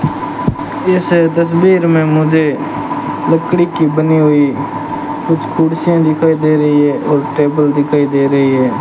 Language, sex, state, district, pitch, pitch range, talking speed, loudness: Hindi, male, Rajasthan, Bikaner, 160 Hz, 150-170 Hz, 135 wpm, -13 LUFS